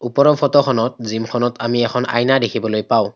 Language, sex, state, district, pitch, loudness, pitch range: Assamese, male, Assam, Kamrup Metropolitan, 120 Hz, -17 LUFS, 115-135 Hz